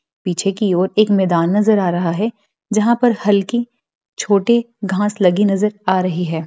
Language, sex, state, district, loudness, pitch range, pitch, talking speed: Hindi, female, Bihar, Darbhanga, -16 LUFS, 185-215 Hz, 205 Hz, 175 wpm